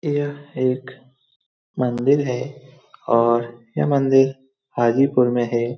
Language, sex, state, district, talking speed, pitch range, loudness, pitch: Hindi, male, Bihar, Saran, 105 wpm, 120-135 Hz, -20 LUFS, 130 Hz